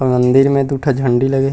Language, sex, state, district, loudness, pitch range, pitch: Chhattisgarhi, male, Chhattisgarh, Rajnandgaon, -14 LUFS, 130-140 Hz, 135 Hz